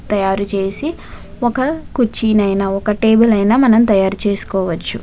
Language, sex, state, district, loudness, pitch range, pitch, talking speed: Telugu, female, Andhra Pradesh, Visakhapatnam, -15 LUFS, 195-235 Hz, 210 Hz, 120 wpm